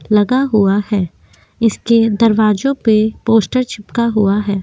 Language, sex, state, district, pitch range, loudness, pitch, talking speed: Hindi, female, Uttar Pradesh, Jyotiba Phule Nagar, 205-230 Hz, -14 LUFS, 220 Hz, 130 wpm